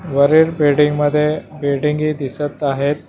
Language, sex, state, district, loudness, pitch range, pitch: Marathi, male, Maharashtra, Mumbai Suburban, -16 LUFS, 140-150 Hz, 150 Hz